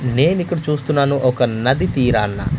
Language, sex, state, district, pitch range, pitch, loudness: Telugu, male, Andhra Pradesh, Manyam, 125-150 Hz, 130 Hz, -17 LUFS